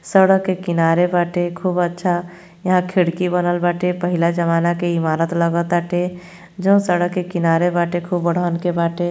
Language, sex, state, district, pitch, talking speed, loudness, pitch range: Bhojpuri, female, Uttar Pradesh, Gorakhpur, 175 Hz, 160 wpm, -18 LUFS, 170-180 Hz